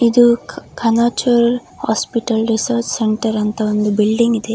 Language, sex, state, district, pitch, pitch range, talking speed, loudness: Kannada, female, Karnataka, Dakshina Kannada, 230 Hz, 215-235 Hz, 120 wpm, -16 LUFS